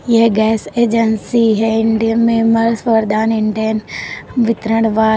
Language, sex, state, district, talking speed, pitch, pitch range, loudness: Hindi, female, Uttar Pradesh, Lalitpur, 125 wpm, 225 Hz, 220-230 Hz, -14 LUFS